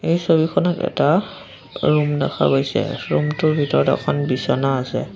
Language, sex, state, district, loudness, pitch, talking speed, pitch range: Assamese, female, Assam, Sonitpur, -19 LUFS, 150 Hz, 140 wpm, 135-175 Hz